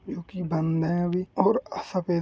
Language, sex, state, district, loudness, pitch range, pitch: Hindi, male, Chhattisgarh, Rajnandgaon, -27 LUFS, 165-185 Hz, 175 Hz